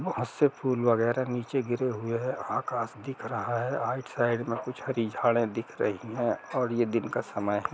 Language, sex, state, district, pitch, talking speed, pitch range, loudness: Hindi, male, Jharkhand, Jamtara, 120 Hz, 210 wpm, 115-130 Hz, -29 LUFS